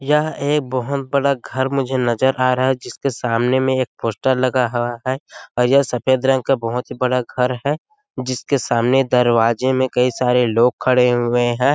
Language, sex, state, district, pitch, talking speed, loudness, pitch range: Hindi, male, Chhattisgarh, Sarguja, 130 Hz, 195 wpm, -18 LUFS, 125-135 Hz